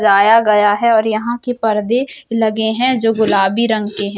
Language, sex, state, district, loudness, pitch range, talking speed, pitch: Hindi, female, Uttar Pradesh, Jalaun, -14 LUFS, 210-235 Hz, 215 wpm, 220 Hz